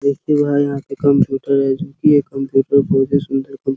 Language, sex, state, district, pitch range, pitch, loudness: Hindi, male, Bihar, Araria, 135-145 Hz, 140 Hz, -16 LUFS